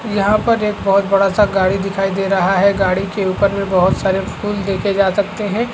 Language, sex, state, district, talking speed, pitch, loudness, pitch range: Hindi, male, Chhattisgarh, Raigarh, 230 wpm, 195 Hz, -16 LUFS, 195-205 Hz